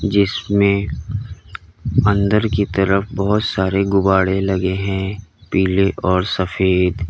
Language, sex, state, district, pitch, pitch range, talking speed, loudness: Hindi, male, Uttar Pradesh, Lalitpur, 95 Hz, 95-100 Hz, 100 wpm, -18 LUFS